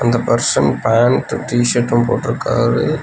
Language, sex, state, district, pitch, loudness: Tamil, male, Tamil Nadu, Nilgiris, 120 Hz, -15 LUFS